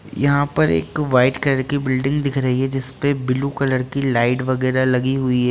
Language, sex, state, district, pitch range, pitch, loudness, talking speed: Hindi, male, Bihar, Jahanabad, 130-140 Hz, 130 Hz, -19 LUFS, 205 wpm